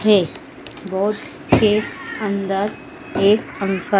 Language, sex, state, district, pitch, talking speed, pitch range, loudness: Hindi, female, Madhya Pradesh, Dhar, 205 Hz, 105 wpm, 195-215 Hz, -20 LUFS